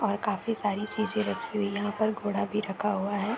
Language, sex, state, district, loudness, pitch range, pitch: Hindi, female, Uttar Pradesh, Varanasi, -30 LUFS, 205-215 Hz, 210 Hz